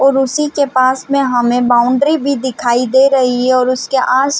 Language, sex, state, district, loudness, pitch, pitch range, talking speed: Hindi, female, Chhattisgarh, Bilaspur, -13 LUFS, 260 Hz, 250-275 Hz, 205 wpm